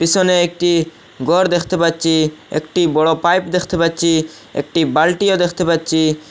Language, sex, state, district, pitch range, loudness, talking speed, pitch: Bengali, male, Assam, Hailakandi, 160-175 Hz, -16 LUFS, 135 wpm, 165 Hz